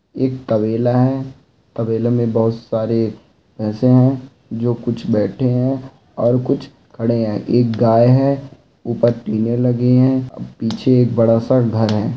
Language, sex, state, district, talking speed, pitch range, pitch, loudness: Hindi, male, Andhra Pradesh, Anantapur, 150 wpm, 115-130 Hz, 120 Hz, -17 LUFS